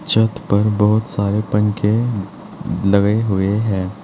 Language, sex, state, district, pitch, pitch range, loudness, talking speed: Hindi, male, Uttar Pradesh, Saharanpur, 105 Hz, 100-110 Hz, -17 LUFS, 120 wpm